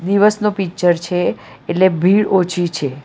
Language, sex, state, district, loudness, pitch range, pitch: Gujarati, female, Gujarat, Valsad, -16 LUFS, 175-200 Hz, 180 Hz